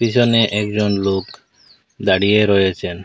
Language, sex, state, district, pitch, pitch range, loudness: Bengali, male, Assam, Hailakandi, 100 Hz, 95-105 Hz, -16 LUFS